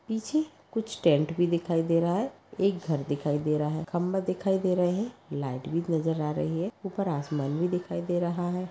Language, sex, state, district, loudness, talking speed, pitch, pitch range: Hindi, female, Maharashtra, Pune, -29 LUFS, 220 wpm, 175 Hz, 160-190 Hz